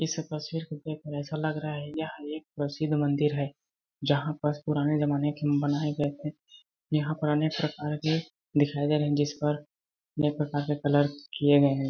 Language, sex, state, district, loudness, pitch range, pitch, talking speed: Hindi, male, Chhattisgarh, Balrampur, -29 LUFS, 145-155 Hz, 150 Hz, 190 wpm